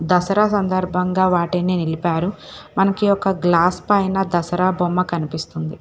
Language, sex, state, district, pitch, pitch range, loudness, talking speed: Telugu, female, Telangana, Hyderabad, 180 Hz, 175-195 Hz, -19 LUFS, 115 wpm